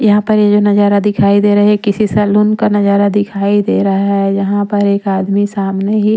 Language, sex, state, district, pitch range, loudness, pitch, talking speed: Hindi, female, Punjab, Pathankot, 200-210 Hz, -12 LUFS, 205 Hz, 235 wpm